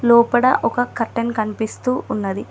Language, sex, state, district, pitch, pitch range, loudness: Telugu, female, Telangana, Mahabubabad, 235 Hz, 220-245 Hz, -19 LUFS